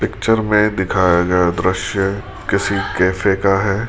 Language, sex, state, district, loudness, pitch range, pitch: Hindi, female, Rajasthan, Jaipur, -16 LUFS, 95-100 Hz, 95 Hz